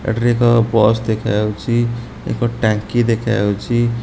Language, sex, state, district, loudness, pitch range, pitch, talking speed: Odia, male, Odisha, Nuapada, -17 LUFS, 110-120 Hz, 115 Hz, 105 wpm